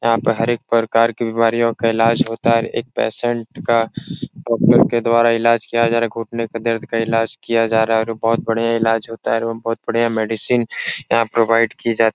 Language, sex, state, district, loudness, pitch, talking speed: Hindi, male, Bihar, Jahanabad, -18 LUFS, 115 Hz, 240 wpm